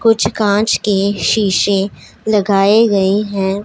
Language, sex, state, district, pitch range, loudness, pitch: Hindi, female, Punjab, Pathankot, 195-210 Hz, -14 LUFS, 205 Hz